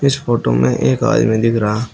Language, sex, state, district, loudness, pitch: Hindi, male, Uttar Pradesh, Shamli, -15 LUFS, 115 Hz